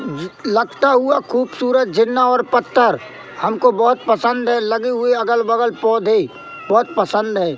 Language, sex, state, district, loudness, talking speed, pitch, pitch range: Hindi, male, Madhya Pradesh, Katni, -16 LUFS, 140 wpm, 240 Hz, 225-250 Hz